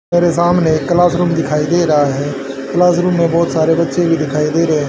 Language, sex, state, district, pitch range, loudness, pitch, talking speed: Hindi, male, Haryana, Charkhi Dadri, 150-175 Hz, -14 LUFS, 165 Hz, 220 wpm